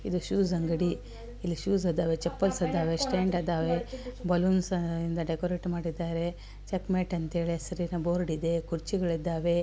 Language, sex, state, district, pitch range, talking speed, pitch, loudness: Kannada, female, Karnataka, Belgaum, 165-180 Hz, 145 wpm, 170 Hz, -30 LUFS